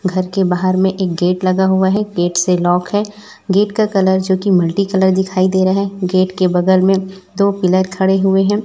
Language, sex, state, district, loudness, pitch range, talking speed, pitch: Hindi, female, Chhattisgarh, Raipur, -15 LUFS, 185-195 Hz, 230 wpm, 190 Hz